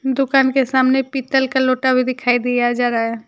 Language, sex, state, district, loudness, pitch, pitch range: Hindi, female, Jharkhand, Deoghar, -17 LUFS, 260 Hz, 245-265 Hz